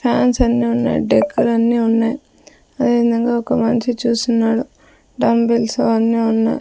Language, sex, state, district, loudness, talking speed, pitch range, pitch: Telugu, female, Andhra Pradesh, Sri Satya Sai, -16 LUFS, 120 wpm, 230-240 Hz, 235 Hz